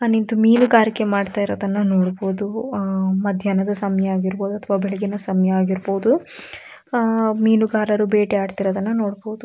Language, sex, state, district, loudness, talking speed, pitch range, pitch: Kannada, female, Karnataka, Dakshina Kannada, -19 LUFS, 100 wpm, 195-220 Hz, 205 Hz